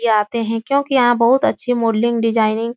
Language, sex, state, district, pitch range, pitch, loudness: Hindi, female, Uttar Pradesh, Etah, 225-245 Hz, 235 Hz, -16 LUFS